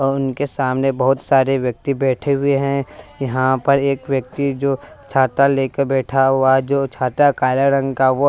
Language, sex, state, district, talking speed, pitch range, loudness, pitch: Hindi, male, Bihar, West Champaran, 180 wpm, 130-140 Hz, -17 LUFS, 135 Hz